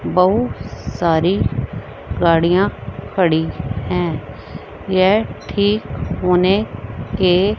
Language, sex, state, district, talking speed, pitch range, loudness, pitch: Hindi, female, Haryana, Rohtak, 70 wpm, 165-195 Hz, -18 LUFS, 180 Hz